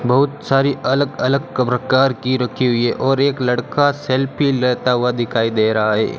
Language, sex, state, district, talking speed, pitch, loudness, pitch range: Hindi, male, Rajasthan, Bikaner, 195 wpm, 130 Hz, -17 LUFS, 125-135 Hz